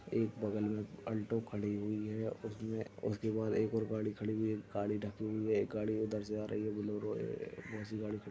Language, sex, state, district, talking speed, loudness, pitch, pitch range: Hindi, male, Uttarakhand, Uttarkashi, 250 wpm, -39 LUFS, 105 Hz, 105-110 Hz